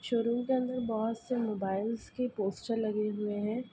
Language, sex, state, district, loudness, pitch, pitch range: Hindi, female, Uttar Pradesh, Ghazipur, -33 LUFS, 225 Hz, 210-245 Hz